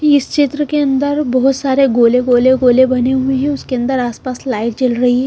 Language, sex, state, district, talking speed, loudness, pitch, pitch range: Hindi, female, Punjab, Kapurthala, 215 wpm, -14 LUFS, 260 Hz, 250-275 Hz